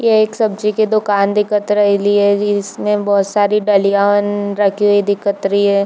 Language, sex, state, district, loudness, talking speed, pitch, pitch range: Hindi, female, Chhattisgarh, Bilaspur, -14 LUFS, 175 wpm, 205 Hz, 200-210 Hz